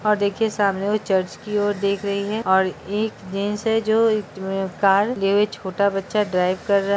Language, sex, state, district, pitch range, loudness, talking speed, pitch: Hindi, female, Jharkhand, Jamtara, 195-210 Hz, -21 LUFS, 200 wpm, 200 Hz